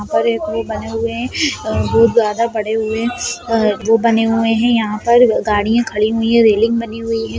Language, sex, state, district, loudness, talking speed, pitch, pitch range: Hindi, female, Bihar, Jamui, -15 LUFS, 220 wpm, 225 Hz, 220-230 Hz